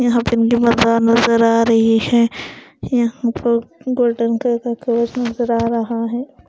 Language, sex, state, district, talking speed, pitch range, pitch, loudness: Hindi, female, Punjab, Pathankot, 150 wpm, 230-240 Hz, 235 Hz, -16 LUFS